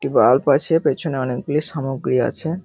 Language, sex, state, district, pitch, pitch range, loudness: Bengali, male, West Bengal, North 24 Parganas, 140 Hz, 130-165 Hz, -19 LUFS